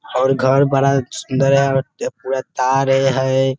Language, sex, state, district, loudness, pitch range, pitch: Hindi, male, Bihar, Muzaffarpur, -17 LUFS, 130-135 Hz, 135 Hz